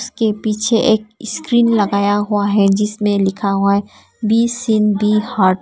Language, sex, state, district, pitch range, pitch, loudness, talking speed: Hindi, female, Arunachal Pradesh, Papum Pare, 205-225 Hz, 210 Hz, -16 LUFS, 160 wpm